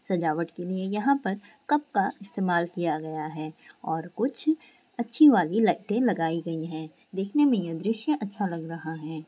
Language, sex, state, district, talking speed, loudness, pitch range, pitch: Hindi, female, West Bengal, Jalpaiguri, 170 wpm, -27 LUFS, 165-235 Hz, 190 Hz